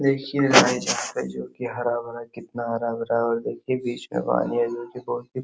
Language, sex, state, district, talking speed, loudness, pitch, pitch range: Hindi, male, Uttar Pradesh, Hamirpur, 130 wpm, -24 LUFS, 120 Hz, 115-125 Hz